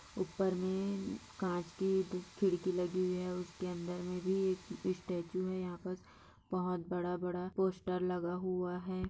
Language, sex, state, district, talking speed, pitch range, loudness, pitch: Hindi, female, Bihar, Kishanganj, 160 wpm, 180-185 Hz, -38 LUFS, 185 Hz